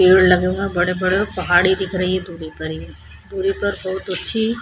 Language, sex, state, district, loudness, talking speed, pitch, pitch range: Hindi, female, Chhattisgarh, Sukma, -18 LUFS, 245 wpm, 185 Hz, 175-190 Hz